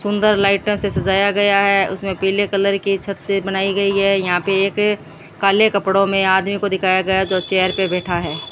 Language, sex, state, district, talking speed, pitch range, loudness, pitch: Hindi, female, Rajasthan, Bikaner, 210 wpm, 190-200 Hz, -17 LUFS, 195 Hz